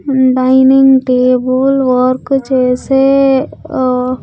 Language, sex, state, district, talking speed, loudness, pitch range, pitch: Telugu, female, Andhra Pradesh, Sri Satya Sai, 85 wpm, -11 LUFS, 255-270 Hz, 260 Hz